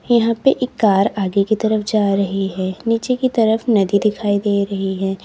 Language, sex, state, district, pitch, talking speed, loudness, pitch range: Hindi, female, Uttar Pradesh, Lalitpur, 210 Hz, 205 wpm, -17 LUFS, 195-230 Hz